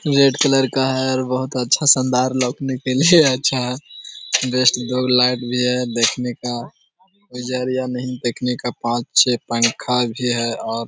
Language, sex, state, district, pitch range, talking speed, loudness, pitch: Hindi, male, Bihar, Jahanabad, 120-130 Hz, 165 wpm, -18 LUFS, 125 Hz